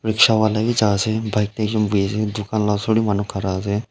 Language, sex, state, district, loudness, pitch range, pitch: Nagamese, male, Nagaland, Dimapur, -19 LUFS, 100-110 Hz, 105 Hz